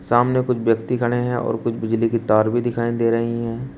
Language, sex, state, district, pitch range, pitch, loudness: Hindi, male, Uttar Pradesh, Shamli, 115-120 Hz, 115 Hz, -20 LUFS